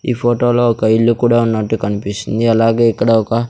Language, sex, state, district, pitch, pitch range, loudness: Telugu, male, Andhra Pradesh, Sri Satya Sai, 115 Hz, 110-120 Hz, -14 LUFS